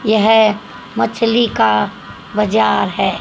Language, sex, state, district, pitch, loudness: Hindi, female, Haryana, Charkhi Dadri, 210 Hz, -15 LUFS